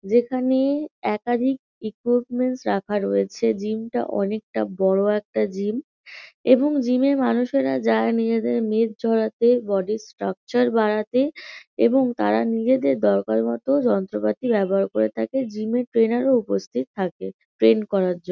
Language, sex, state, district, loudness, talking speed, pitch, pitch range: Bengali, female, West Bengal, North 24 Parganas, -22 LUFS, 130 wpm, 220 Hz, 185-245 Hz